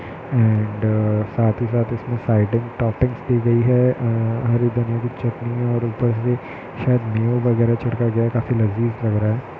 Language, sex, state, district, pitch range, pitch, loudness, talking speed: Hindi, male, Bihar, Muzaffarpur, 115-120 Hz, 120 Hz, -20 LUFS, 195 wpm